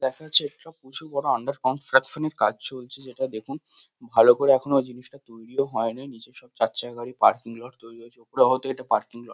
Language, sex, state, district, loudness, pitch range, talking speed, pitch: Bengali, male, West Bengal, Kolkata, -23 LUFS, 120-140 Hz, 205 wpm, 130 Hz